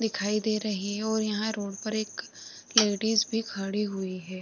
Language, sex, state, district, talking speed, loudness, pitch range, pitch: Hindi, female, Chhattisgarh, Raigarh, 190 wpm, -28 LUFS, 200-220 Hz, 210 Hz